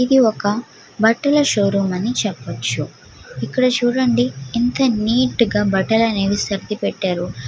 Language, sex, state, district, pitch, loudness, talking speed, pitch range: Telugu, female, Andhra Pradesh, Guntur, 220 Hz, -18 LUFS, 130 wpm, 200-245 Hz